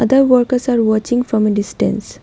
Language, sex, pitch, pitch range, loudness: English, female, 245 Hz, 220-250 Hz, -15 LUFS